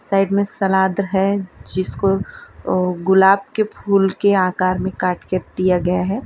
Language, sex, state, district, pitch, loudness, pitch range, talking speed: Hindi, female, Gujarat, Valsad, 190 Hz, -18 LUFS, 185-200 Hz, 165 wpm